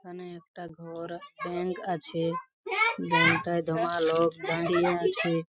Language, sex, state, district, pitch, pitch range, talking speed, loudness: Bengali, male, West Bengal, Paschim Medinipur, 170 Hz, 165-180 Hz, 130 wpm, -27 LUFS